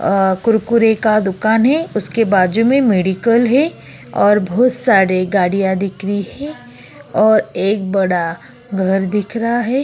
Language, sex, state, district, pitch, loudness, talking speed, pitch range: Hindi, female, Uttar Pradesh, Jyotiba Phule Nagar, 205 Hz, -15 LUFS, 145 wpm, 190-230 Hz